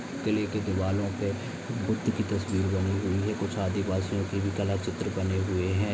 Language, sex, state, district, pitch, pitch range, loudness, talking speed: Hindi, male, Maharashtra, Aurangabad, 100 Hz, 95-105 Hz, -29 LUFS, 190 wpm